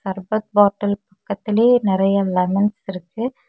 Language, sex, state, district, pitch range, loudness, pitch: Tamil, female, Tamil Nadu, Kanyakumari, 190-215 Hz, -19 LUFS, 200 Hz